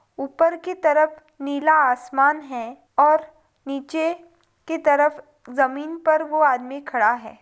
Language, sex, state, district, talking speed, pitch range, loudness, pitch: Hindi, female, Bihar, Gaya, 130 wpm, 275-315 Hz, -21 LUFS, 300 Hz